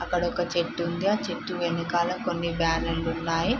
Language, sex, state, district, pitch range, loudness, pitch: Telugu, female, Andhra Pradesh, Srikakulam, 170-175 Hz, -27 LUFS, 170 Hz